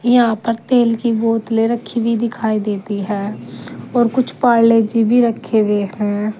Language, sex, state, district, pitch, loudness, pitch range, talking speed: Hindi, female, Uttar Pradesh, Saharanpur, 230 Hz, -16 LUFS, 215-235 Hz, 170 wpm